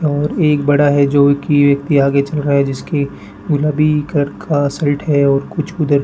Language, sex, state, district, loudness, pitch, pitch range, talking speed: Hindi, male, Rajasthan, Bikaner, -15 LUFS, 145 Hz, 140-150 Hz, 210 wpm